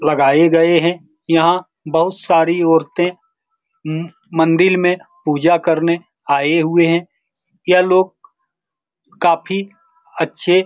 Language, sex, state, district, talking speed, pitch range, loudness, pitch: Hindi, male, Bihar, Saran, 115 wpm, 165-185 Hz, -15 LUFS, 170 Hz